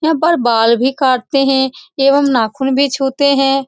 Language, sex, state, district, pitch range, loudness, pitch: Hindi, female, Bihar, Saran, 260-280 Hz, -13 LUFS, 270 Hz